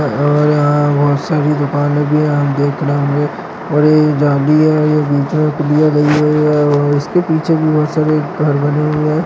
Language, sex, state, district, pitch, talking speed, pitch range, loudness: Hindi, male, Maharashtra, Nagpur, 150 Hz, 195 wpm, 145-150 Hz, -13 LUFS